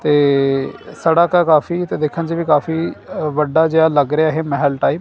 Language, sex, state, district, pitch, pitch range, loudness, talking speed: Punjabi, male, Punjab, Kapurthala, 155 Hz, 145-165 Hz, -16 LUFS, 215 wpm